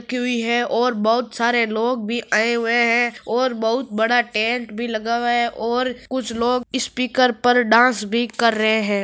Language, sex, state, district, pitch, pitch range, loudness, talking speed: Marwari, female, Rajasthan, Nagaur, 235 Hz, 230-245 Hz, -19 LUFS, 190 wpm